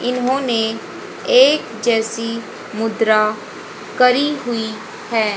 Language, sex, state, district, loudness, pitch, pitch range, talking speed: Hindi, female, Haryana, Jhajjar, -17 LUFS, 230 Hz, 220-255 Hz, 80 wpm